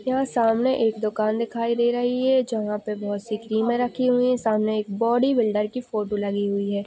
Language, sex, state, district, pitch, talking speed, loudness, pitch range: Hindi, female, Chhattisgarh, Sarguja, 225 Hz, 200 wpm, -23 LUFS, 210-245 Hz